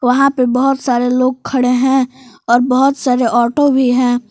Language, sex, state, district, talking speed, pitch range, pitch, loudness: Hindi, female, Jharkhand, Palamu, 180 wpm, 245-265 Hz, 255 Hz, -13 LUFS